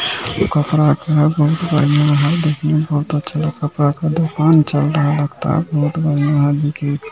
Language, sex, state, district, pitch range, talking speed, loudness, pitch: Hindi, male, Bihar, Bhagalpur, 145-155 Hz, 150 wpm, -16 LUFS, 150 Hz